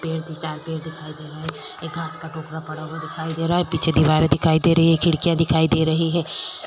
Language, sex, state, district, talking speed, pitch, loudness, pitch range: Hindi, female, Chhattisgarh, Kabirdham, 235 wpm, 160 Hz, -21 LUFS, 155-165 Hz